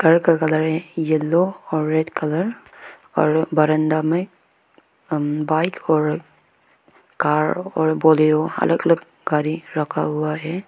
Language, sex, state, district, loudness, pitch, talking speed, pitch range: Hindi, female, Arunachal Pradesh, Lower Dibang Valley, -20 LUFS, 155 Hz, 100 wpm, 155-165 Hz